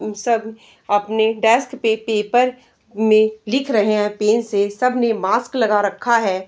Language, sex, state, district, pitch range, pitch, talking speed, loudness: Hindi, female, Uttar Pradesh, Varanasi, 210-235 Hz, 220 Hz, 165 wpm, -18 LUFS